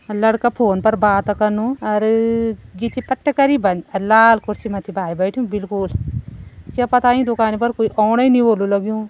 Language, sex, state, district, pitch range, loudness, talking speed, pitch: Garhwali, female, Uttarakhand, Tehri Garhwal, 210-235 Hz, -17 LUFS, 185 wpm, 220 Hz